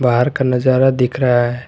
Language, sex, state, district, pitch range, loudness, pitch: Hindi, male, Jharkhand, Garhwa, 120-130 Hz, -15 LUFS, 125 Hz